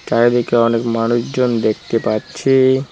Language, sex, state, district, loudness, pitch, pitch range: Bengali, male, West Bengal, Cooch Behar, -16 LUFS, 115 Hz, 115-130 Hz